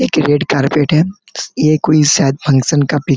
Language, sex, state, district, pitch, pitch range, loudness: Hindi, male, Chhattisgarh, Korba, 150 Hz, 140-155 Hz, -13 LUFS